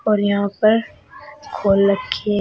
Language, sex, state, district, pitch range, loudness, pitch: Hindi, female, Uttar Pradesh, Saharanpur, 200-215 Hz, -18 LUFS, 205 Hz